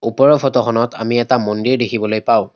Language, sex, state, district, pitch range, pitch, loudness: Assamese, male, Assam, Kamrup Metropolitan, 115-125 Hz, 120 Hz, -15 LUFS